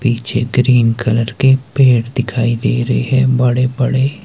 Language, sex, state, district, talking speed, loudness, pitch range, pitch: Hindi, male, Himachal Pradesh, Shimla, 155 wpm, -14 LUFS, 115-130 Hz, 125 Hz